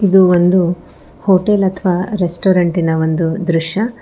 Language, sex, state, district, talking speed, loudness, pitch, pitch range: Kannada, female, Karnataka, Bangalore, 120 wpm, -14 LUFS, 180 Hz, 170-195 Hz